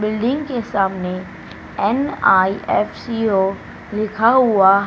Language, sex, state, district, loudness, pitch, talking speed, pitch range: Hindi, female, Haryana, Charkhi Dadri, -18 LUFS, 215 Hz, 75 wpm, 195-235 Hz